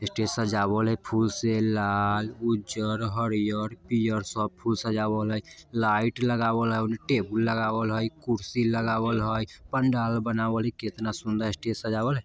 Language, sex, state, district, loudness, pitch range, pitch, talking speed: Bajjika, male, Bihar, Vaishali, -27 LUFS, 110-115 Hz, 110 Hz, 150 wpm